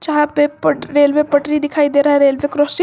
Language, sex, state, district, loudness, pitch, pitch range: Hindi, female, Jharkhand, Garhwa, -14 LUFS, 290 Hz, 285-300 Hz